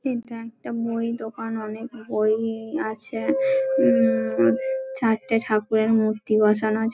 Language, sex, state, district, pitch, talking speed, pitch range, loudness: Bengali, female, West Bengal, Dakshin Dinajpur, 225 Hz, 145 wpm, 220-235 Hz, -23 LUFS